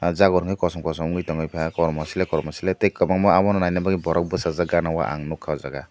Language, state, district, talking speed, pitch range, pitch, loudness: Kokborok, Tripura, Dhalai, 255 wpm, 80-95 Hz, 85 Hz, -22 LUFS